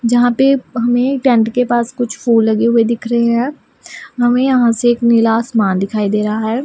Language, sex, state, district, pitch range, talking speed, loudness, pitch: Hindi, female, Punjab, Pathankot, 225-245 Hz, 205 wpm, -14 LUFS, 235 Hz